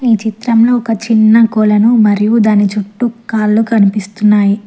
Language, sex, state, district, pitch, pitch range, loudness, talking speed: Telugu, female, Telangana, Mahabubabad, 215 Hz, 210-225 Hz, -11 LUFS, 130 wpm